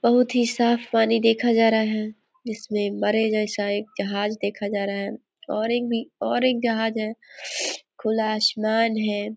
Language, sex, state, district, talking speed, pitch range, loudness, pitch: Hindi, female, Jharkhand, Sahebganj, 175 wpm, 210-230 Hz, -23 LUFS, 220 Hz